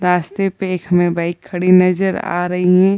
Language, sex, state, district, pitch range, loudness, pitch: Hindi, female, Bihar, Gaya, 175-190 Hz, -16 LUFS, 180 Hz